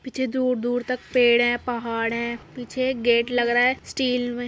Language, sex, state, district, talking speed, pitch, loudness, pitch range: Hindi, female, Uttar Pradesh, Muzaffarnagar, 200 wpm, 245 Hz, -22 LUFS, 235-255 Hz